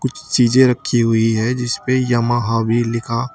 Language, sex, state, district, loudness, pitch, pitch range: Hindi, male, Uttar Pradesh, Shamli, -16 LUFS, 120 Hz, 115-125 Hz